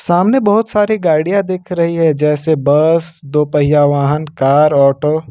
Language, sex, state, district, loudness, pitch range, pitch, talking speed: Hindi, male, Jharkhand, Ranchi, -13 LUFS, 150-175 Hz, 155 Hz, 160 wpm